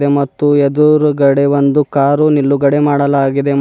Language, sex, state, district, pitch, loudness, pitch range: Kannada, male, Karnataka, Bidar, 140 Hz, -12 LUFS, 140-145 Hz